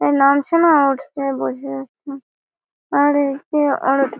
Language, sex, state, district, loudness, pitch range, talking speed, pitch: Bengali, female, West Bengal, Malda, -17 LUFS, 265-285 Hz, 130 wpm, 275 Hz